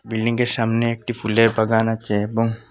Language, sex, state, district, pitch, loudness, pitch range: Bengali, male, Assam, Hailakandi, 115 Hz, -20 LUFS, 110-115 Hz